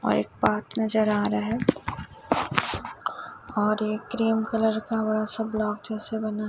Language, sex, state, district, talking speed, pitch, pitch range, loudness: Hindi, male, Chhattisgarh, Raipur, 155 wpm, 215 Hz, 210-225 Hz, -26 LUFS